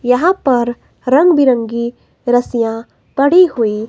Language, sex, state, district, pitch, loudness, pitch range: Hindi, female, Himachal Pradesh, Shimla, 245 Hz, -13 LUFS, 235-280 Hz